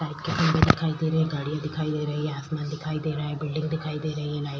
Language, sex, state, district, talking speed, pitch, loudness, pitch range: Hindi, female, Chhattisgarh, Kabirdham, 275 wpm, 155 Hz, -27 LUFS, 150-155 Hz